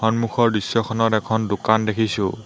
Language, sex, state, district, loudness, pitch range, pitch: Assamese, male, Assam, Hailakandi, -20 LUFS, 110-115 Hz, 110 Hz